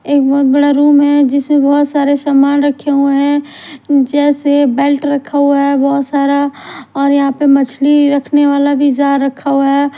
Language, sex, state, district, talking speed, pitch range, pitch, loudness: Hindi, female, Himachal Pradesh, Shimla, 180 wpm, 280-290 Hz, 285 Hz, -11 LUFS